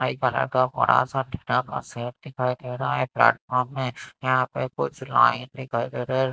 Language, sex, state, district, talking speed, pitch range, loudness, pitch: Hindi, male, Maharashtra, Mumbai Suburban, 200 wpm, 120-130 Hz, -24 LUFS, 125 Hz